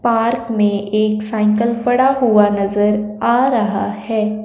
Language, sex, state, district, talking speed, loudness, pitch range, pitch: Hindi, female, Punjab, Fazilka, 135 wpm, -16 LUFS, 210-235 Hz, 215 Hz